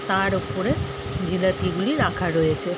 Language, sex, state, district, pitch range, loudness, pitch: Bengali, female, West Bengal, Jhargram, 175-190 Hz, -23 LUFS, 180 Hz